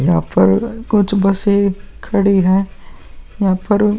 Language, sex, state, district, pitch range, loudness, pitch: Hindi, male, Uttar Pradesh, Muzaffarnagar, 185-205 Hz, -15 LUFS, 195 Hz